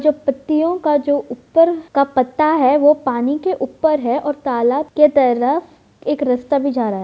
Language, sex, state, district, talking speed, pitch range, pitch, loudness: Hindi, female, Bihar, Vaishali, 195 wpm, 260-310 Hz, 290 Hz, -16 LUFS